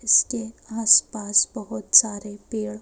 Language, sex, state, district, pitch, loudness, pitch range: Hindi, female, Madhya Pradesh, Bhopal, 210 Hz, -18 LUFS, 185-225 Hz